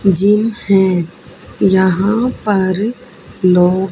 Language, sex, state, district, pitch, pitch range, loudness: Hindi, female, Haryana, Charkhi Dadri, 195 Hz, 185-210 Hz, -14 LUFS